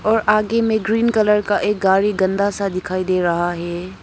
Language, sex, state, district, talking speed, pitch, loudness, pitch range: Hindi, female, Arunachal Pradesh, Papum Pare, 210 wpm, 200 Hz, -18 LUFS, 185-215 Hz